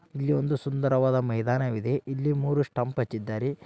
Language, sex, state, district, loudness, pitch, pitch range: Kannada, male, Karnataka, Dharwad, -27 LUFS, 135 Hz, 125-145 Hz